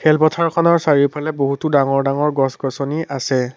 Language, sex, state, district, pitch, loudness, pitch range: Assamese, male, Assam, Sonitpur, 140 Hz, -17 LUFS, 135-155 Hz